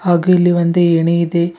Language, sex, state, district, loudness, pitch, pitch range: Kannada, female, Karnataka, Bidar, -13 LUFS, 175 Hz, 170-175 Hz